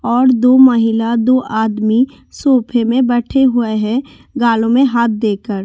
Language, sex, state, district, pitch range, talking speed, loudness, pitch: Hindi, female, Delhi, New Delhi, 225-255 Hz, 150 wpm, -13 LUFS, 240 Hz